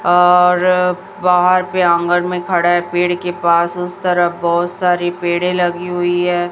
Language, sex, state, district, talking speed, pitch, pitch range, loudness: Hindi, female, Chhattisgarh, Raipur, 165 wpm, 175 Hz, 175-180 Hz, -15 LUFS